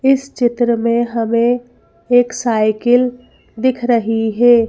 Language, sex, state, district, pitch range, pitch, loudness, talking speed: Hindi, female, Madhya Pradesh, Bhopal, 230-245 Hz, 240 Hz, -15 LUFS, 115 wpm